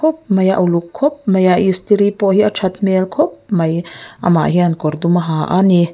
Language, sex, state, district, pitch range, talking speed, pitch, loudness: Mizo, female, Mizoram, Aizawl, 170-200 Hz, 210 wpm, 185 Hz, -15 LUFS